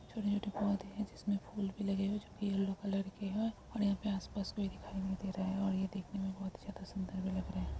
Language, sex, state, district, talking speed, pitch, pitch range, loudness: Hindi, female, Bihar, Jamui, 270 wpm, 195 Hz, 190-205 Hz, -39 LUFS